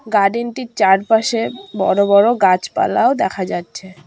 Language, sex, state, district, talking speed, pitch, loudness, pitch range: Bengali, female, West Bengal, Cooch Behar, 120 wpm, 200 Hz, -16 LUFS, 190-225 Hz